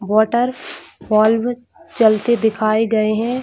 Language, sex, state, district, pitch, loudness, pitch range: Hindi, female, Jharkhand, Jamtara, 225 Hz, -17 LUFS, 215-245 Hz